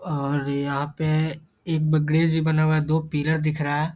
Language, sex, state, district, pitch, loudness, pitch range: Hindi, male, Bihar, Muzaffarpur, 155 Hz, -23 LUFS, 145-160 Hz